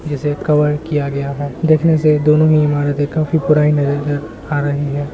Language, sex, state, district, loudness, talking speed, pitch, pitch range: Hindi, male, Bihar, Samastipur, -15 LUFS, 185 wpm, 145 Hz, 145-155 Hz